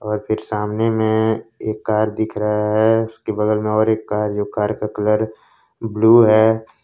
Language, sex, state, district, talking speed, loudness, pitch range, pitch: Hindi, male, Jharkhand, Ranchi, 175 wpm, -18 LUFS, 105-110 Hz, 110 Hz